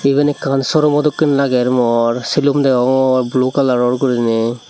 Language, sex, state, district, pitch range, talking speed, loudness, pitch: Chakma, male, Tripura, Unakoti, 125-140 Hz, 130 wpm, -14 LUFS, 130 Hz